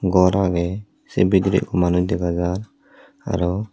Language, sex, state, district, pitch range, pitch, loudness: Chakma, male, Tripura, Dhalai, 90-95 Hz, 90 Hz, -20 LUFS